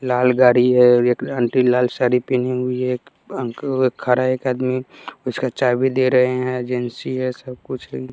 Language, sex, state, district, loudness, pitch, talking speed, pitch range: Hindi, male, Bihar, West Champaran, -19 LUFS, 125 Hz, 190 wpm, 125-130 Hz